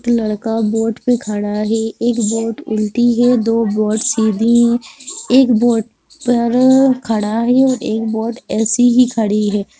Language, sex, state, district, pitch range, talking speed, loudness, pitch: Hindi, female, Bihar, Gopalganj, 220-245 Hz, 160 wpm, -15 LUFS, 230 Hz